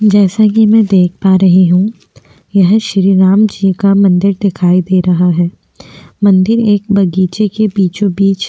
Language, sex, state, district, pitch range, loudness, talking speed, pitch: Hindi, female, Uttar Pradesh, Jyotiba Phule Nagar, 185-205 Hz, -10 LUFS, 170 wpm, 195 Hz